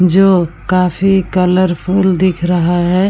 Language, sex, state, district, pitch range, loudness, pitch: Hindi, female, Bihar, Vaishali, 180-185 Hz, -13 LUFS, 180 Hz